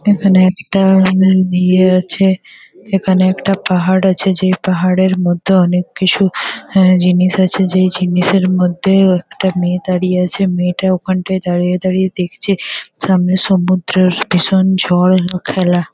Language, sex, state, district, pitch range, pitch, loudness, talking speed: Bengali, female, West Bengal, Kolkata, 180-190 Hz, 185 Hz, -13 LUFS, 135 wpm